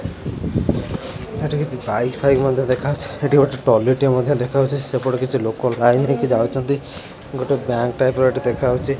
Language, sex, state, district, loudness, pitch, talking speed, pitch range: Odia, male, Odisha, Khordha, -19 LUFS, 130 Hz, 155 wpm, 125-140 Hz